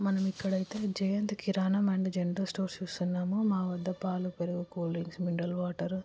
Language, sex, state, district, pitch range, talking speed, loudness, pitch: Telugu, male, Telangana, Karimnagar, 180-195 Hz, 180 wpm, -33 LUFS, 185 Hz